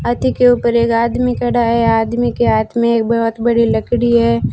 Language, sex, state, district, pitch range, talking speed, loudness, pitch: Hindi, female, Rajasthan, Bikaner, 230-240 Hz, 210 wpm, -14 LUFS, 235 Hz